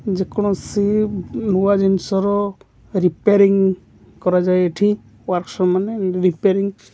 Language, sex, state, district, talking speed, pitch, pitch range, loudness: Odia, male, Odisha, Khordha, 85 wpm, 195 Hz, 185-200 Hz, -18 LUFS